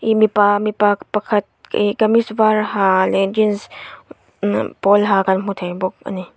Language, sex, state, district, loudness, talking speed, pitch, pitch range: Mizo, female, Mizoram, Aizawl, -17 LUFS, 170 wpm, 205 Hz, 195-215 Hz